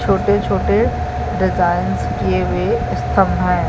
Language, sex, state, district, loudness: Hindi, female, Chhattisgarh, Balrampur, -17 LUFS